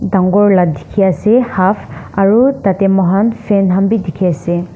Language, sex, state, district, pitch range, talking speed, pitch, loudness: Nagamese, female, Nagaland, Dimapur, 185-205 Hz, 165 wpm, 195 Hz, -12 LUFS